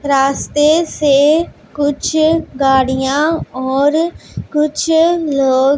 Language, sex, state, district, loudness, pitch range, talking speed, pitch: Hindi, female, Punjab, Pathankot, -14 LUFS, 270-315 Hz, 85 wpm, 290 Hz